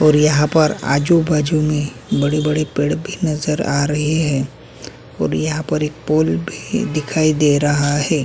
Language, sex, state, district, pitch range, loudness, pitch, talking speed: Hindi, male, Uttarakhand, Tehri Garhwal, 145-155 Hz, -17 LUFS, 150 Hz, 160 wpm